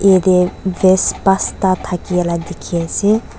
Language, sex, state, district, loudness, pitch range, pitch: Nagamese, female, Nagaland, Dimapur, -15 LUFS, 180-190 Hz, 185 Hz